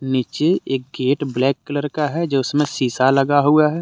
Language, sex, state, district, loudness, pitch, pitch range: Hindi, male, Jharkhand, Deoghar, -19 LUFS, 140 Hz, 130-150 Hz